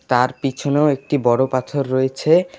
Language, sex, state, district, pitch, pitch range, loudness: Bengali, male, West Bengal, Alipurduar, 135 Hz, 130-145 Hz, -18 LUFS